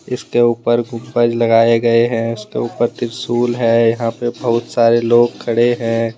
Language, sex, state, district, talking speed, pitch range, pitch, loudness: Hindi, male, Jharkhand, Deoghar, 165 wpm, 115-120 Hz, 115 Hz, -15 LUFS